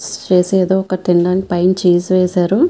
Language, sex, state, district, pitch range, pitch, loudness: Telugu, female, Andhra Pradesh, Visakhapatnam, 180-190 Hz, 185 Hz, -14 LUFS